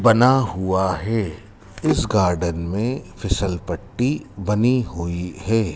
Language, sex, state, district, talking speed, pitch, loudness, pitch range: Hindi, male, Madhya Pradesh, Dhar, 115 wpm, 95 Hz, -21 LUFS, 90-115 Hz